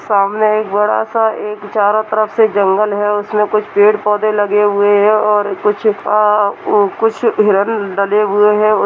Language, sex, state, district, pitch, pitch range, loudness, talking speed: Hindi, female, Uttar Pradesh, Budaun, 210 Hz, 205-215 Hz, -13 LUFS, 155 wpm